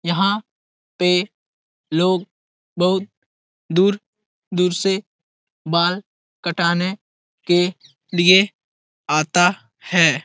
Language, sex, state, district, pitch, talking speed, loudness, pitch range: Hindi, male, Bihar, Jahanabad, 180 Hz, 75 wpm, -19 LUFS, 170-190 Hz